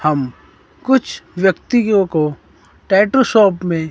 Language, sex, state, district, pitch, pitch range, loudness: Hindi, male, Himachal Pradesh, Shimla, 185 Hz, 150-215 Hz, -15 LUFS